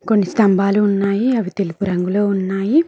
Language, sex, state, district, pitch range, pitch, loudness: Telugu, female, Telangana, Mahabubabad, 195-210 Hz, 200 Hz, -17 LUFS